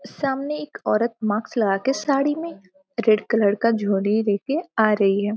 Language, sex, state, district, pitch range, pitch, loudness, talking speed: Hindi, female, Bihar, Gopalganj, 205-280 Hz, 225 Hz, -22 LUFS, 190 wpm